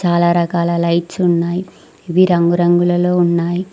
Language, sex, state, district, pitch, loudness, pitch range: Telugu, female, Telangana, Mahabubabad, 175 Hz, -15 LUFS, 170-180 Hz